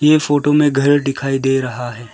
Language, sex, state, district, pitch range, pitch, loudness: Hindi, male, Arunachal Pradesh, Lower Dibang Valley, 135-145 Hz, 135 Hz, -15 LUFS